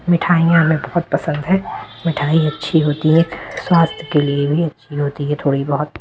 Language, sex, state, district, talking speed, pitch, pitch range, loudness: Hindi, female, Delhi, New Delhi, 190 wpm, 155 Hz, 145-165 Hz, -17 LUFS